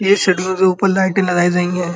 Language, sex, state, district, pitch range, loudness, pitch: Hindi, male, Uttar Pradesh, Muzaffarnagar, 180-190 Hz, -15 LUFS, 185 Hz